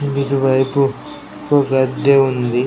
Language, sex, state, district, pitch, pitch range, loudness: Telugu, male, Andhra Pradesh, Krishna, 135 Hz, 130-140 Hz, -16 LUFS